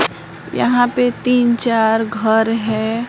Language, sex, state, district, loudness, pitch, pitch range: Hindi, female, Bihar, West Champaran, -16 LUFS, 230 Hz, 225-245 Hz